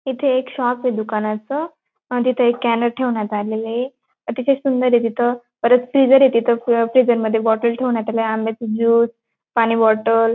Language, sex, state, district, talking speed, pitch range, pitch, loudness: Marathi, female, Maharashtra, Dhule, 160 wpm, 225-255 Hz, 235 Hz, -18 LUFS